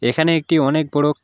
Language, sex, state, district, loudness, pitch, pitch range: Bengali, male, West Bengal, Alipurduar, -17 LUFS, 155 Hz, 145-160 Hz